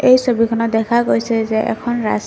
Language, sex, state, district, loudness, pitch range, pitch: Assamese, female, Assam, Kamrup Metropolitan, -16 LUFS, 220-240 Hz, 230 Hz